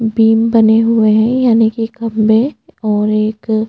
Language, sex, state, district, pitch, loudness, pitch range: Hindi, female, Chhattisgarh, Jashpur, 225 Hz, -12 LUFS, 220-230 Hz